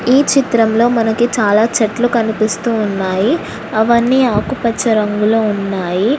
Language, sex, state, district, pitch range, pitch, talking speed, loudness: Telugu, female, Telangana, Hyderabad, 210-240 Hz, 225 Hz, 95 wpm, -14 LUFS